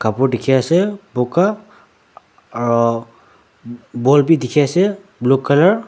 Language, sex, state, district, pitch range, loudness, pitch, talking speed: Nagamese, male, Nagaland, Dimapur, 120-190 Hz, -16 LUFS, 135 Hz, 120 wpm